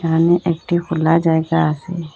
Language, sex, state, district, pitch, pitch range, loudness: Bengali, female, Assam, Hailakandi, 165 Hz, 160-170 Hz, -17 LUFS